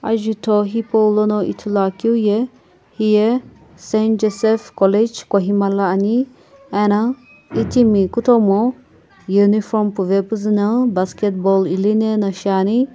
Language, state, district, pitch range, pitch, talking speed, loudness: Sumi, Nagaland, Kohima, 200-225 Hz, 210 Hz, 95 wpm, -17 LUFS